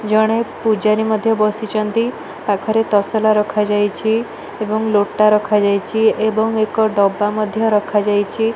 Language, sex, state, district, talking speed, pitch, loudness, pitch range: Odia, female, Odisha, Malkangiri, 135 wpm, 215 Hz, -16 LUFS, 210-220 Hz